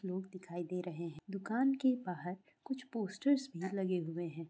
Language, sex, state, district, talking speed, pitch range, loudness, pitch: Hindi, female, Uttar Pradesh, Jalaun, 185 wpm, 175-235 Hz, -38 LUFS, 185 Hz